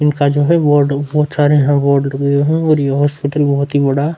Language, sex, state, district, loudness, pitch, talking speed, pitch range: Hindi, male, Bihar, Vaishali, -14 LUFS, 145 Hz, 260 wpm, 140-150 Hz